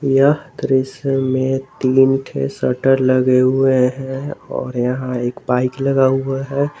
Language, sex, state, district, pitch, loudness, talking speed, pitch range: Hindi, male, Jharkhand, Garhwa, 135 Hz, -17 LUFS, 140 wpm, 130-135 Hz